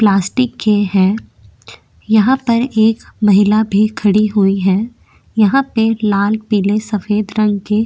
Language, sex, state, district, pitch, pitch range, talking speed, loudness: Hindi, female, Maharashtra, Aurangabad, 210 Hz, 205-220 Hz, 145 wpm, -14 LUFS